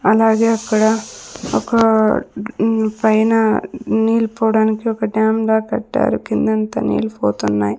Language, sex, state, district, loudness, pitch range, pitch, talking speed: Telugu, female, Andhra Pradesh, Sri Satya Sai, -16 LUFS, 215-225 Hz, 220 Hz, 110 wpm